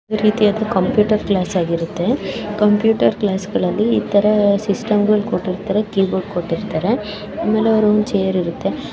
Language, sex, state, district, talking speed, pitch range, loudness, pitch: Kannada, female, Karnataka, Belgaum, 115 wpm, 190-215 Hz, -17 LUFS, 205 Hz